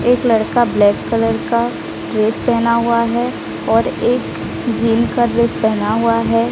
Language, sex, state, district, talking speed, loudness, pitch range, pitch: Hindi, female, Odisha, Sambalpur, 155 wpm, -16 LUFS, 225-235 Hz, 235 Hz